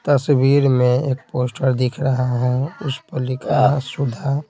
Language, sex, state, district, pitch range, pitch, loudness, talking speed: Hindi, male, Bihar, Patna, 125-140 Hz, 130 Hz, -19 LUFS, 160 wpm